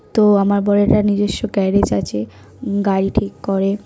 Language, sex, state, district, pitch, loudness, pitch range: Bengali, female, West Bengal, North 24 Parganas, 200 Hz, -17 LUFS, 190-205 Hz